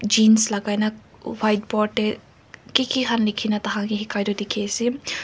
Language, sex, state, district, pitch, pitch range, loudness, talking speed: Nagamese, female, Nagaland, Kohima, 215 Hz, 210-225 Hz, -22 LUFS, 150 wpm